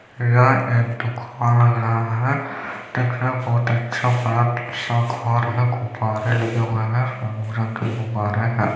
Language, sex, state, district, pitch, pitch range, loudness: Hindi, male, Chhattisgarh, Balrampur, 120 Hz, 115-125 Hz, -21 LUFS